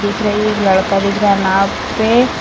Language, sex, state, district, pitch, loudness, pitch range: Hindi, female, Bihar, Sitamarhi, 205 Hz, -14 LUFS, 195-215 Hz